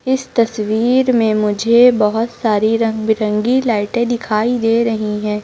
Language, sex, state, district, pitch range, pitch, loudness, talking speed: Hindi, male, Uttar Pradesh, Lucknow, 215-240 Hz, 225 Hz, -15 LUFS, 145 wpm